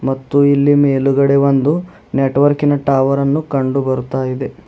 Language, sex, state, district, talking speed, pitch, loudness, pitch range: Kannada, male, Karnataka, Bidar, 115 wpm, 140 Hz, -14 LUFS, 135-145 Hz